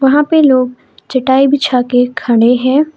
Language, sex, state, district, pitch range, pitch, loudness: Hindi, female, Jharkhand, Palamu, 250-280 Hz, 260 Hz, -11 LUFS